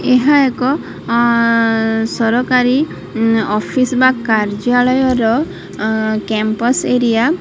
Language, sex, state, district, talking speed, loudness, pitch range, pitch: Odia, female, Odisha, Sambalpur, 95 wpm, -14 LUFS, 225-255 Hz, 235 Hz